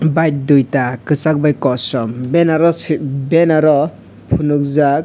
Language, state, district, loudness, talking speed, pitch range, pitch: Kokborok, Tripura, West Tripura, -14 LUFS, 120 wpm, 135-155 Hz, 145 Hz